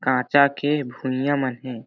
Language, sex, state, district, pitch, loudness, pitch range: Chhattisgarhi, male, Chhattisgarh, Jashpur, 130 Hz, -22 LUFS, 130-145 Hz